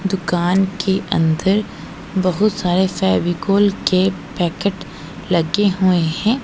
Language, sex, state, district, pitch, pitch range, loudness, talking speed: Hindi, female, Punjab, Pathankot, 185 Hz, 175-200 Hz, -18 LUFS, 105 wpm